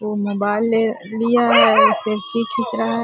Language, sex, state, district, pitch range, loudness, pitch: Hindi, female, Bihar, Purnia, 215-230 Hz, -17 LUFS, 225 Hz